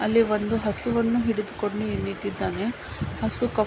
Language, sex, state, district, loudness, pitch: Kannada, female, Karnataka, Mysore, -26 LUFS, 210 Hz